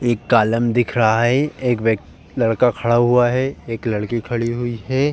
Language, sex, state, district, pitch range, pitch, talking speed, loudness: Hindi, male, Uttar Pradesh, Jalaun, 115-125 Hz, 120 Hz, 185 wpm, -18 LUFS